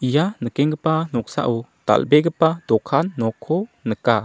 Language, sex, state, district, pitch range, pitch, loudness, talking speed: Garo, male, Meghalaya, South Garo Hills, 120-160 Hz, 150 Hz, -20 LUFS, 100 wpm